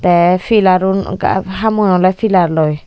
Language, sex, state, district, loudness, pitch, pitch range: Chakma, female, Tripura, Unakoti, -13 LUFS, 185 Hz, 180-195 Hz